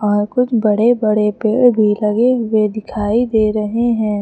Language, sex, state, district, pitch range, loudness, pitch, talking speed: Hindi, female, Uttar Pradesh, Lucknow, 210-235 Hz, -15 LUFS, 215 Hz, 170 wpm